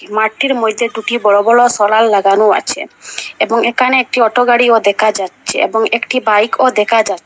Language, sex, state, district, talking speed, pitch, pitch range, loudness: Bengali, female, Assam, Hailakandi, 165 wpm, 225 Hz, 210-240 Hz, -12 LUFS